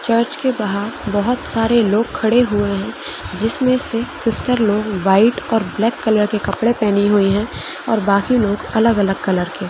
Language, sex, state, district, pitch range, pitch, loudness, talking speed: Hindi, female, Chhattisgarh, Korba, 205-235 Hz, 220 Hz, -17 LUFS, 180 wpm